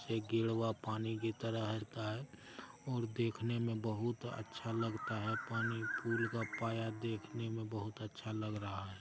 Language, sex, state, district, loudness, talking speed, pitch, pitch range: Hindi, male, Bihar, Araria, -40 LUFS, 175 wpm, 115 Hz, 110-115 Hz